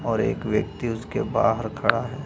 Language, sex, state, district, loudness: Hindi, male, Uttar Pradesh, Lucknow, -24 LUFS